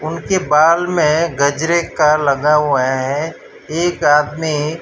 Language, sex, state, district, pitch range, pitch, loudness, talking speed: Hindi, male, Gujarat, Valsad, 145-165 Hz, 155 Hz, -15 LUFS, 135 wpm